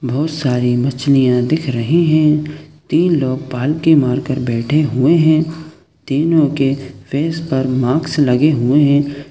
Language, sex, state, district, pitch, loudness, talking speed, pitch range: Hindi, male, Chhattisgarh, Sukma, 145 Hz, -15 LUFS, 140 wpm, 130-155 Hz